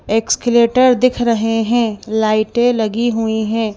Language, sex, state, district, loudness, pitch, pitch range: Hindi, female, Madhya Pradesh, Bhopal, -15 LUFS, 225 Hz, 220-240 Hz